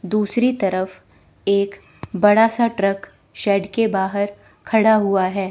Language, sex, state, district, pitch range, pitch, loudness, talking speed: Hindi, female, Chandigarh, Chandigarh, 195-220 Hz, 200 Hz, -19 LUFS, 130 wpm